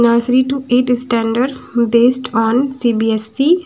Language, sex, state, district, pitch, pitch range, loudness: Hindi, female, Haryana, Charkhi Dadri, 245 Hz, 235-260 Hz, -15 LUFS